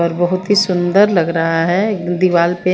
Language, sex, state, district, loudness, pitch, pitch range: Hindi, female, Chandigarh, Chandigarh, -14 LUFS, 180 Hz, 170-185 Hz